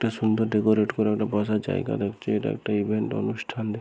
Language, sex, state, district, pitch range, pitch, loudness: Bengali, male, West Bengal, Purulia, 105-110 Hz, 110 Hz, -25 LUFS